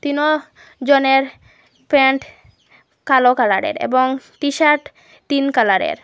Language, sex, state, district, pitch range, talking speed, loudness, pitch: Bengali, female, Assam, Hailakandi, 265-290 Hz, 110 wpm, -16 LUFS, 275 Hz